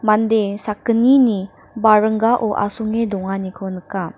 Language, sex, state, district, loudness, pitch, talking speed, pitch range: Garo, female, Meghalaya, North Garo Hills, -17 LUFS, 215 Hz, 85 wpm, 195-225 Hz